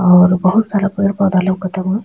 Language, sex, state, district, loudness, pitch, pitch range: Bhojpuri, female, Bihar, East Champaran, -14 LUFS, 190 Hz, 185-200 Hz